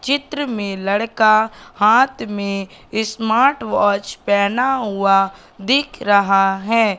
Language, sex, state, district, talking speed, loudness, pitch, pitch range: Hindi, female, Madhya Pradesh, Katni, 110 wpm, -17 LUFS, 210 Hz, 200-235 Hz